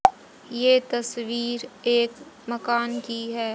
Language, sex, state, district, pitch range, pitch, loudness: Hindi, female, Haryana, Jhajjar, 235-255 Hz, 240 Hz, -25 LUFS